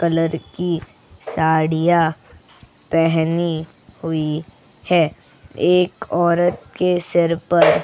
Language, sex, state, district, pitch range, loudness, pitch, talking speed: Hindi, female, Goa, North and South Goa, 160-175 Hz, -19 LUFS, 165 Hz, 85 wpm